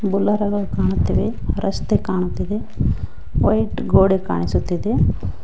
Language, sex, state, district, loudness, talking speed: Kannada, female, Karnataka, Koppal, -20 LUFS, 75 wpm